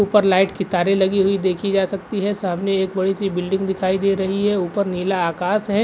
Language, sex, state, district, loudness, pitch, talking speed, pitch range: Hindi, male, Uttar Pradesh, Jalaun, -20 LUFS, 195 Hz, 235 wpm, 185-200 Hz